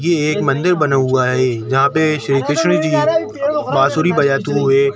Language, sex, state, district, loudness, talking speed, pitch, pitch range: Hindi, male, Chhattisgarh, Sukma, -15 LUFS, 155 wpm, 140 Hz, 135-155 Hz